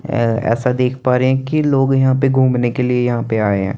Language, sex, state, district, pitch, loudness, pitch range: Hindi, male, Chandigarh, Chandigarh, 125 Hz, -16 LUFS, 120-135 Hz